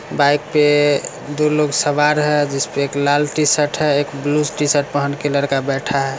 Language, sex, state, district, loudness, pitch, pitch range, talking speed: Hindi, male, Bihar, Muzaffarpur, -17 LUFS, 145 Hz, 140-150 Hz, 175 wpm